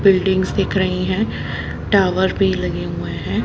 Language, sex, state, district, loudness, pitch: Hindi, female, Haryana, Jhajjar, -19 LUFS, 185 Hz